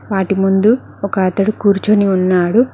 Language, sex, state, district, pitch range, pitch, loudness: Telugu, female, Telangana, Mahabubabad, 190-210 Hz, 195 Hz, -14 LUFS